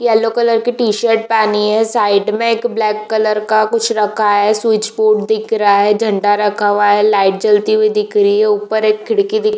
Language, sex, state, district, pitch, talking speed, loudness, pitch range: Hindi, female, Chhattisgarh, Bilaspur, 220 Hz, 225 wpm, -13 LUFS, 210-235 Hz